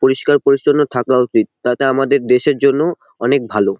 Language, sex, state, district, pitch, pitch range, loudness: Bengali, male, West Bengal, Jalpaiguri, 135 Hz, 125-140 Hz, -15 LUFS